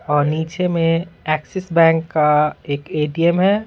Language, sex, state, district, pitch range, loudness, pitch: Hindi, male, Bihar, Patna, 150-170 Hz, -18 LUFS, 165 Hz